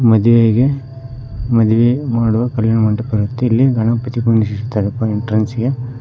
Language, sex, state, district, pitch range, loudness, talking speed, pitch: Kannada, male, Karnataka, Koppal, 110-125 Hz, -15 LUFS, 110 wpm, 115 Hz